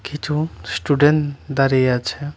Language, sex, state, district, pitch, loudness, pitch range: Bengali, male, Tripura, West Tripura, 145 Hz, -19 LUFS, 135-150 Hz